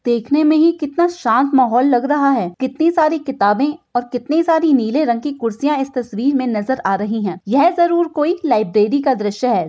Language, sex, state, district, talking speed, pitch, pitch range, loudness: Hindi, female, Bihar, Saran, 205 wpm, 270 Hz, 235-305 Hz, -16 LUFS